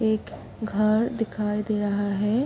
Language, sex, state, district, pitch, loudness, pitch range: Hindi, female, Bihar, Kishanganj, 215 Hz, -25 LUFS, 210-220 Hz